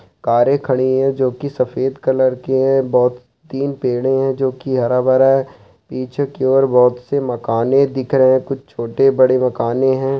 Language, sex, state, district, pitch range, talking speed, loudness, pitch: Hindi, male, Bihar, Saharsa, 125-135 Hz, 180 wpm, -16 LUFS, 130 Hz